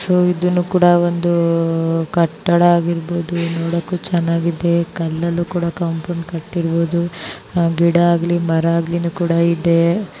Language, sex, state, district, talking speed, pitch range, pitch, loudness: Kannada, female, Karnataka, Bijapur, 95 wpm, 170-175 Hz, 170 Hz, -17 LUFS